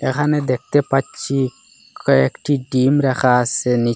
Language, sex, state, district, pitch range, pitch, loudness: Bengali, male, Assam, Hailakandi, 125-140 Hz, 130 Hz, -18 LUFS